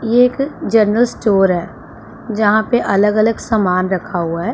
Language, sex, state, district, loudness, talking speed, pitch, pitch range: Hindi, female, Punjab, Pathankot, -15 LUFS, 170 wpm, 215 Hz, 190-235 Hz